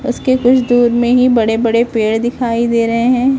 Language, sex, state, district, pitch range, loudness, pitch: Hindi, female, Chhattisgarh, Raipur, 230-250 Hz, -13 LUFS, 240 Hz